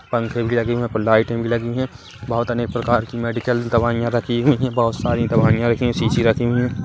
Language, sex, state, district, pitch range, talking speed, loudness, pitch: Hindi, male, Chhattisgarh, Kabirdham, 115-120 Hz, 235 wpm, -19 LUFS, 120 Hz